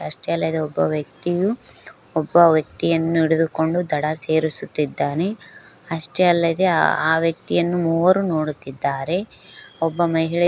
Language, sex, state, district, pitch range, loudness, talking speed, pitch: Kannada, female, Karnataka, Koppal, 155-175 Hz, -20 LUFS, 105 wpm, 165 Hz